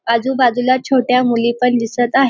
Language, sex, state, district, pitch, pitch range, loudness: Marathi, female, Maharashtra, Dhule, 250 Hz, 240-255 Hz, -15 LUFS